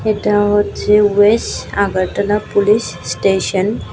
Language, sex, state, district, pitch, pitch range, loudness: Bengali, female, Tripura, West Tripura, 205 Hz, 200-210 Hz, -15 LUFS